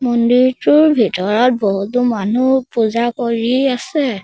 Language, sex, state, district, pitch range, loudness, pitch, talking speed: Assamese, male, Assam, Sonitpur, 230-255 Hz, -15 LUFS, 245 Hz, 100 wpm